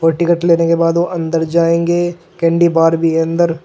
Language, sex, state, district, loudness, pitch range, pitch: Hindi, male, Uttar Pradesh, Saharanpur, -14 LUFS, 165-170 Hz, 170 Hz